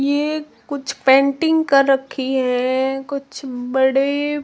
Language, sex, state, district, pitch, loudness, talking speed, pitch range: Hindi, female, Rajasthan, Jaisalmer, 275 Hz, -18 LUFS, 110 wpm, 265-285 Hz